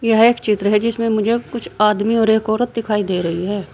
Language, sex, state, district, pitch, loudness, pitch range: Hindi, female, Uttar Pradesh, Saharanpur, 220 Hz, -17 LUFS, 205-230 Hz